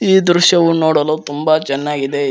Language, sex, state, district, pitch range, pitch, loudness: Kannada, male, Karnataka, Koppal, 145-175 Hz, 155 Hz, -14 LUFS